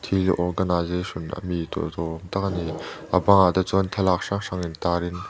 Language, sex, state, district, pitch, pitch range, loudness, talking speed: Mizo, male, Mizoram, Aizawl, 90 Hz, 85-95 Hz, -24 LUFS, 250 wpm